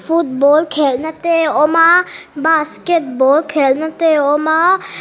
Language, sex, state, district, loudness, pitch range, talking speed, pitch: Mizo, female, Mizoram, Aizawl, -13 LUFS, 290-335 Hz, 120 wpm, 315 Hz